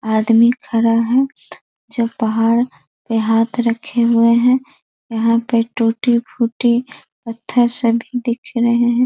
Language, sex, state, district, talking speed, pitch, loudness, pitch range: Hindi, female, Bihar, East Champaran, 125 wpm, 235 Hz, -16 LUFS, 230-245 Hz